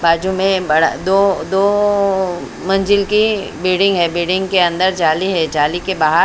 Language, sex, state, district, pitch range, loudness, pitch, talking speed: Hindi, female, Maharashtra, Mumbai Suburban, 170-195 Hz, -15 LUFS, 190 Hz, 165 wpm